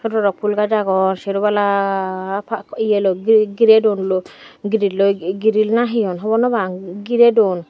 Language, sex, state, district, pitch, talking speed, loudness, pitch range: Chakma, female, Tripura, Dhalai, 205 Hz, 140 wpm, -17 LUFS, 190-220 Hz